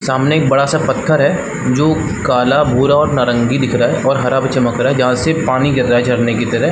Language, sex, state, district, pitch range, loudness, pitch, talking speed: Hindi, male, Chhattisgarh, Balrampur, 125-145 Hz, -14 LUFS, 130 Hz, 260 wpm